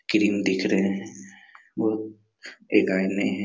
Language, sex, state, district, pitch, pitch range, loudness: Hindi, male, Chhattisgarh, Raigarh, 100 Hz, 95-110 Hz, -24 LUFS